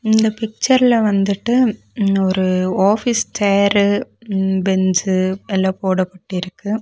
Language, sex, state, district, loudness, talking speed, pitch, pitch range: Tamil, female, Tamil Nadu, Nilgiris, -17 LUFS, 95 wpm, 200 Hz, 190-220 Hz